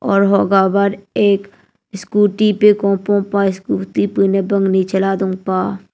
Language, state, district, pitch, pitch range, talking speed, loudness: Nyishi, Arunachal Pradesh, Papum Pare, 195 Hz, 190-200 Hz, 130 wpm, -15 LUFS